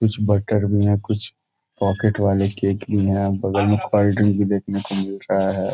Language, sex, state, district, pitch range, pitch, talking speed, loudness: Hindi, male, Bihar, Gopalganj, 100-105 Hz, 100 Hz, 220 wpm, -20 LUFS